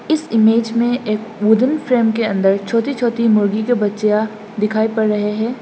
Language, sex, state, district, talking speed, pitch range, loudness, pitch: Hindi, female, Assam, Hailakandi, 180 wpm, 210-235 Hz, -16 LUFS, 220 Hz